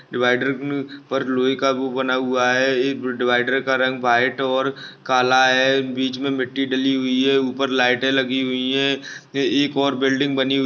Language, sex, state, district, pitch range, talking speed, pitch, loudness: Hindi, male, Chhattisgarh, Bastar, 130-135 Hz, 190 wpm, 130 Hz, -20 LUFS